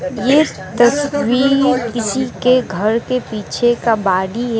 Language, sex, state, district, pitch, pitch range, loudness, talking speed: Hindi, female, West Bengal, Alipurduar, 240 Hz, 220-260 Hz, -16 LUFS, 130 wpm